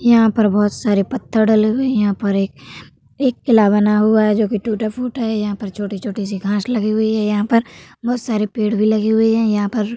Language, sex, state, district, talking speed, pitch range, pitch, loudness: Hindi, female, Uttar Pradesh, Hamirpur, 235 wpm, 210-225 Hz, 215 Hz, -17 LUFS